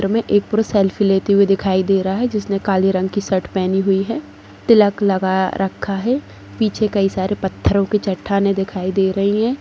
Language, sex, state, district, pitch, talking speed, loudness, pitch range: Hindi, female, Chhattisgarh, Jashpur, 195 Hz, 200 wpm, -17 LUFS, 190-210 Hz